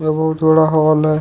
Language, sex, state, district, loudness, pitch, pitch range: Hindi, male, Jharkhand, Ranchi, -14 LUFS, 155 Hz, 155-160 Hz